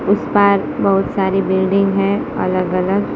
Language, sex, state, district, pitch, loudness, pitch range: Hindi, female, Gujarat, Gandhinagar, 195 Hz, -16 LUFS, 190-200 Hz